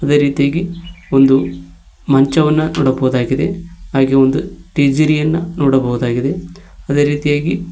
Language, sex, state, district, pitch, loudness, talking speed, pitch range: Kannada, male, Karnataka, Koppal, 145 Hz, -15 LUFS, 95 wpm, 135-160 Hz